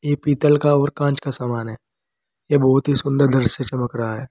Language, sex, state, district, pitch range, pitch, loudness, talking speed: Hindi, male, Uttar Pradesh, Saharanpur, 125-145 Hz, 135 Hz, -18 LUFS, 235 wpm